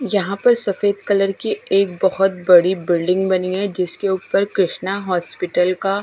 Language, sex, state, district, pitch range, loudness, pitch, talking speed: Hindi, female, Bihar, West Champaran, 180-200 Hz, -18 LUFS, 195 Hz, 160 wpm